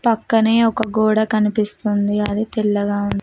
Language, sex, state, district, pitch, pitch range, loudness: Telugu, female, Telangana, Mahabubabad, 215 Hz, 205-220 Hz, -18 LUFS